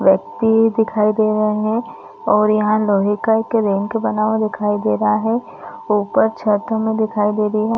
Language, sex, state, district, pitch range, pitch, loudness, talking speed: Hindi, female, Chhattisgarh, Rajnandgaon, 210-220 Hz, 215 Hz, -17 LUFS, 185 wpm